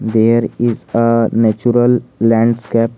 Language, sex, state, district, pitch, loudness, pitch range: English, male, Jharkhand, Garhwa, 115 Hz, -14 LUFS, 115-120 Hz